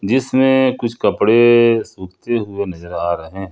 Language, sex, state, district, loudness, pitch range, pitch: Hindi, male, Jharkhand, Ranchi, -16 LUFS, 95-120 Hz, 115 Hz